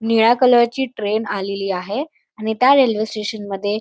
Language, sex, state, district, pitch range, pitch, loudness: Marathi, female, Maharashtra, Dhule, 205-245 Hz, 220 Hz, -18 LUFS